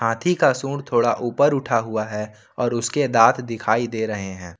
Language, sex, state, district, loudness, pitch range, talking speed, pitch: Hindi, male, Jharkhand, Ranchi, -21 LUFS, 110-130 Hz, 195 wpm, 115 Hz